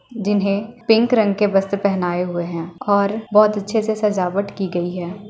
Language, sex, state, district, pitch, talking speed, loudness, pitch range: Hindi, female, Uttar Pradesh, Etah, 200 Hz, 180 wpm, -19 LUFS, 180-210 Hz